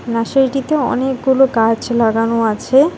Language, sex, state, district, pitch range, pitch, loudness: Bengali, female, West Bengal, Alipurduar, 230-270 Hz, 250 Hz, -15 LUFS